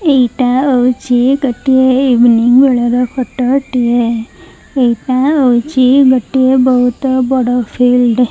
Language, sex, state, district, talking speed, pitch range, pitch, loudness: Odia, female, Odisha, Malkangiri, 100 wpm, 245-260 Hz, 255 Hz, -11 LUFS